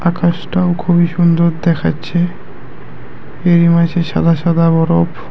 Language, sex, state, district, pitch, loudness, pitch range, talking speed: Bengali, male, West Bengal, Cooch Behar, 170 Hz, -14 LUFS, 165-175 Hz, 100 wpm